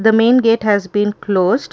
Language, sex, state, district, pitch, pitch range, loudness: English, female, Karnataka, Bangalore, 210 Hz, 205-225 Hz, -14 LUFS